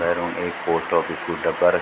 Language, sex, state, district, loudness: Garhwali, male, Uttarakhand, Tehri Garhwal, -23 LUFS